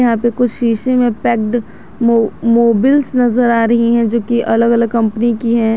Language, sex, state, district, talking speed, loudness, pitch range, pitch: Hindi, female, Jharkhand, Garhwa, 185 wpm, -13 LUFS, 230-240 Hz, 235 Hz